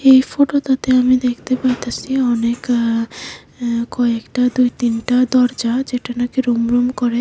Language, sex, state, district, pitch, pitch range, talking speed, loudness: Bengali, female, Tripura, West Tripura, 250 Hz, 240-255 Hz, 140 wpm, -17 LUFS